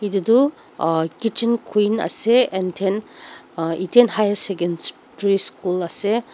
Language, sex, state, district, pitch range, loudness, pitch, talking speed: Nagamese, female, Nagaland, Dimapur, 185-230 Hz, -18 LUFS, 205 Hz, 115 wpm